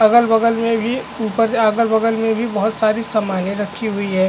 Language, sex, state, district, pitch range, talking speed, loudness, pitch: Hindi, male, Chhattisgarh, Bastar, 210-230 Hz, 240 wpm, -17 LUFS, 220 Hz